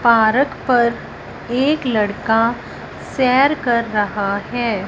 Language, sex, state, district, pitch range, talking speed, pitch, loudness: Hindi, female, Punjab, Fazilka, 215-255 Hz, 100 wpm, 235 Hz, -17 LUFS